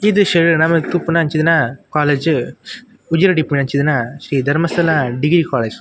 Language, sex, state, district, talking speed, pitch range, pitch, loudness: Tulu, male, Karnataka, Dakshina Kannada, 125 wpm, 140-170 Hz, 160 Hz, -15 LUFS